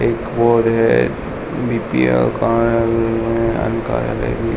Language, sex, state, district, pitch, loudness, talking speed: Hindi, male, Uttar Pradesh, Hamirpur, 115 Hz, -17 LUFS, 65 wpm